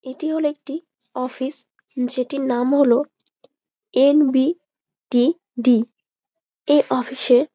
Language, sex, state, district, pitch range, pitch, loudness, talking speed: Bengali, female, West Bengal, Jalpaiguri, 255-300 Hz, 275 Hz, -20 LUFS, 105 wpm